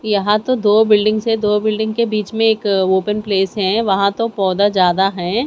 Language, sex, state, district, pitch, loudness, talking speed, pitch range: Hindi, female, Haryana, Jhajjar, 210 Hz, -16 LUFS, 210 wpm, 195-220 Hz